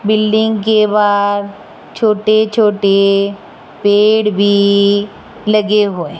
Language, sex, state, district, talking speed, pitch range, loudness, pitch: Hindi, female, Rajasthan, Jaipur, 85 wpm, 200-215 Hz, -12 LUFS, 205 Hz